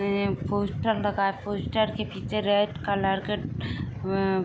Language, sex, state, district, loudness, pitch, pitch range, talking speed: Hindi, female, Uttar Pradesh, Gorakhpur, -27 LUFS, 200 Hz, 195-205 Hz, 135 wpm